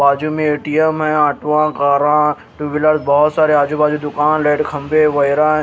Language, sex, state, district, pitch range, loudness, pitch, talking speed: Hindi, male, Haryana, Jhajjar, 145-155 Hz, -15 LUFS, 150 Hz, 180 wpm